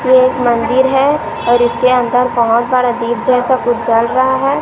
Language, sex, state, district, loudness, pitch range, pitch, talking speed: Hindi, female, Chhattisgarh, Raipur, -12 LUFS, 235-260 Hz, 245 Hz, 195 wpm